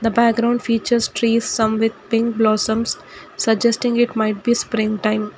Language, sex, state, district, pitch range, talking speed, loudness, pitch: English, female, Karnataka, Bangalore, 220-235 Hz, 155 wpm, -18 LUFS, 225 Hz